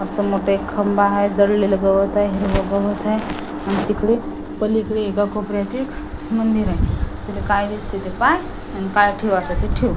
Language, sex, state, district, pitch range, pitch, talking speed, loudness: Marathi, female, Maharashtra, Washim, 200-215 Hz, 205 Hz, 175 wpm, -20 LUFS